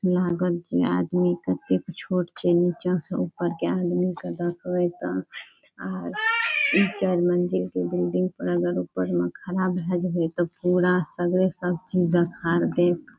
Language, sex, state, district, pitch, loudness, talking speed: Maithili, female, Bihar, Saharsa, 175 Hz, -25 LUFS, 160 wpm